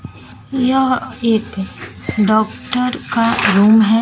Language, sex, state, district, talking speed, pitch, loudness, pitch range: Hindi, female, Bihar, West Champaran, 90 wpm, 230 Hz, -15 LUFS, 215-255 Hz